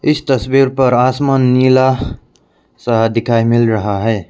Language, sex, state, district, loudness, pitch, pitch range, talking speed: Hindi, male, Arunachal Pradesh, Lower Dibang Valley, -13 LUFS, 125 Hz, 115-130 Hz, 140 wpm